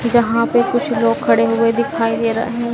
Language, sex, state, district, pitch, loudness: Hindi, female, Madhya Pradesh, Dhar, 230 Hz, -16 LUFS